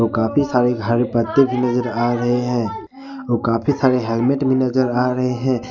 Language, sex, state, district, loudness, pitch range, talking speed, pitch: Hindi, male, Jharkhand, Ranchi, -18 LUFS, 120-130 Hz, 190 wpm, 125 Hz